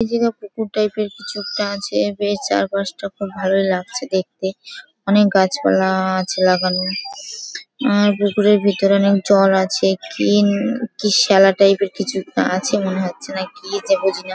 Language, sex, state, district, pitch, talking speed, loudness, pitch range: Bengali, female, West Bengal, Jhargram, 200 Hz, 155 wpm, -18 LUFS, 190-210 Hz